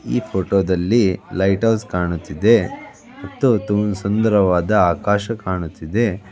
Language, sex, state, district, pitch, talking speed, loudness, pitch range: Kannada, male, Karnataka, Belgaum, 100 Hz, 105 wpm, -18 LUFS, 90-110 Hz